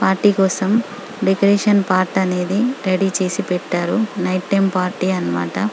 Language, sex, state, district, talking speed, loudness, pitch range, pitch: Telugu, female, Telangana, Karimnagar, 115 wpm, -18 LUFS, 185-205 Hz, 190 Hz